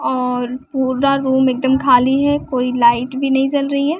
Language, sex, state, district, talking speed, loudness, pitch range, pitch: Hindi, female, Bihar, West Champaran, 195 wpm, -16 LUFS, 250-275 Hz, 265 Hz